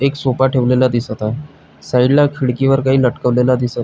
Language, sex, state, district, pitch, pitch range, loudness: Marathi, male, Maharashtra, Pune, 130 Hz, 125-135 Hz, -15 LUFS